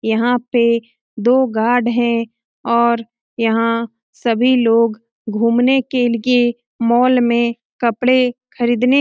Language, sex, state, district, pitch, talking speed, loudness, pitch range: Hindi, female, Bihar, Lakhisarai, 235 Hz, 115 wpm, -16 LUFS, 230-245 Hz